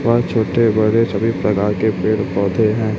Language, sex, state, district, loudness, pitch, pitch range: Hindi, male, Chhattisgarh, Raipur, -17 LUFS, 110 Hz, 105-115 Hz